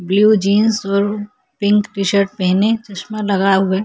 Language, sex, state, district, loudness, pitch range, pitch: Hindi, female, Chhattisgarh, Korba, -16 LUFS, 195-210 Hz, 200 Hz